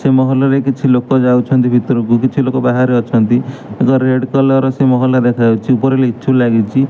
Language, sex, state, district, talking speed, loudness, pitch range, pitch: Odia, male, Odisha, Malkangiri, 140 wpm, -12 LUFS, 125-135 Hz, 130 Hz